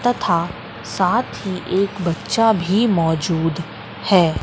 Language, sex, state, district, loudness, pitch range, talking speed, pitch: Hindi, female, Madhya Pradesh, Katni, -19 LUFS, 165-205 Hz, 110 wpm, 185 Hz